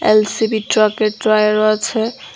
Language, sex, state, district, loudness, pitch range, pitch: Bengali, female, Tripura, West Tripura, -15 LUFS, 215-220 Hz, 215 Hz